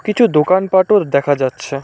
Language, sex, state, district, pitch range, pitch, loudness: Bengali, male, West Bengal, Cooch Behar, 140-200 Hz, 170 Hz, -14 LUFS